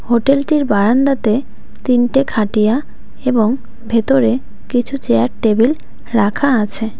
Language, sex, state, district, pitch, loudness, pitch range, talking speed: Bengali, female, West Bengal, Cooch Behar, 240 Hz, -15 LUFS, 220-270 Hz, 95 wpm